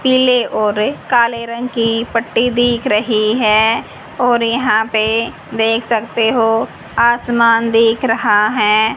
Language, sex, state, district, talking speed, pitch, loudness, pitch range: Hindi, female, Haryana, Jhajjar, 125 wpm, 230 Hz, -14 LUFS, 225-240 Hz